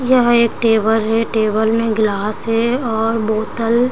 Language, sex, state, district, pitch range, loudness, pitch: Hindi, female, Chhattisgarh, Raigarh, 220-235 Hz, -16 LUFS, 225 Hz